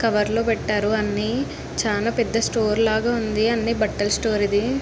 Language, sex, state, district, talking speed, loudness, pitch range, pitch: Telugu, female, Andhra Pradesh, Guntur, 175 wpm, -22 LUFS, 210-230 Hz, 220 Hz